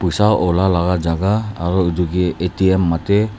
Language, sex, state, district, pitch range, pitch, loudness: Nagamese, male, Nagaland, Dimapur, 85-100 Hz, 90 Hz, -17 LUFS